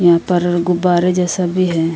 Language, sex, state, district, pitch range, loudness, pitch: Hindi, female, Bihar, Darbhanga, 175-180 Hz, -15 LUFS, 175 Hz